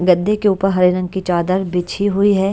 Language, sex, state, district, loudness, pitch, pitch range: Hindi, female, Haryana, Jhajjar, -16 LUFS, 190 Hz, 180-200 Hz